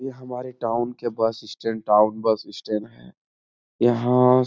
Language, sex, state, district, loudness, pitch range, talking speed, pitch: Hindi, male, Uttar Pradesh, Etah, -23 LUFS, 105-125 Hz, 160 wpm, 115 Hz